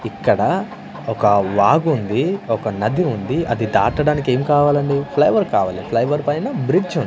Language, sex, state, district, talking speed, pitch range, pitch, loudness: Telugu, male, Andhra Pradesh, Manyam, 145 wpm, 110-150 Hz, 140 Hz, -18 LUFS